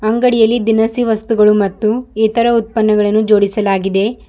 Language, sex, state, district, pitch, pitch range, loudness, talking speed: Kannada, female, Karnataka, Bidar, 220 Hz, 210-230 Hz, -13 LUFS, 100 wpm